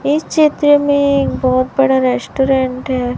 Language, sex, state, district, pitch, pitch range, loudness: Hindi, male, Chhattisgarh, Raipur, 270 Hz, 255-290 Hz, -14 LUFS